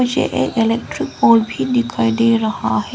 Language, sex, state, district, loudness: Hindi, female, Arunachal Pradesh, Lower Dibang Valley, -16 LUFS